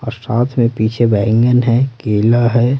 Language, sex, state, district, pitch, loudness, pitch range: Hindi, male, Bihar, Patna, 120 Hz, -14 LUFS, 115-120 Hz